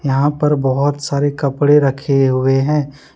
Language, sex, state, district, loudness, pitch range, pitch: Hindi, male, Jharkhand, Deoghar, -15 LUFS, 135-145 Hz, 140 Hz